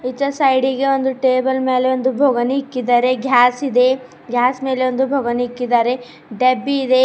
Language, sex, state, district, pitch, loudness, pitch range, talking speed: Kannada, female, Karnataka, Bidar, 255 Hz, -17 LUFS, 250-265 Hz, 145 wpm